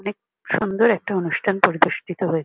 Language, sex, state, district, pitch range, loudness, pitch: Bengali, female, West Bengal, Kolkata, 180-205 Hz, -20 LUFS, 195 Hz